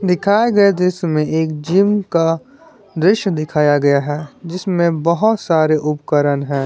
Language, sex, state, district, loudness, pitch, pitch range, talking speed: Hindi, male, Jharkhand, Garhwa, -16 LUFS, 170 Hz, 150-195 Hz, 145 wpm